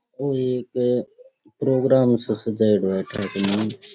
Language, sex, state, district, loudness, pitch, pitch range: Rajasthani, male, Rajasthan, Churu, -22 LUFS, 120 Hz, 105-130 Hz